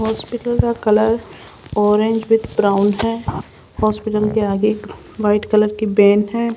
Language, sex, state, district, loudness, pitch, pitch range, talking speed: Hindi, female, Rajasthan, Jaipur, -17 LUFS, 215 Hz, 210-225 Hz, 145 wpm